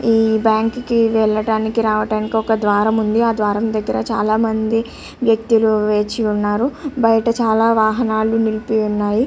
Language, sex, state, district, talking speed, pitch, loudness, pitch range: Telugu, female, Andhra Pradesh, Chittoor, 135 wpm, 220 Hz, -17 LUFS, 215-225 Hz